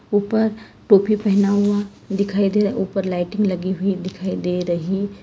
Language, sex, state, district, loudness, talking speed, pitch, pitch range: Hindi, female, Karnataka, Bangalore, -20 LUFS, 150 wpm, 200 Hz, 185-205 Hz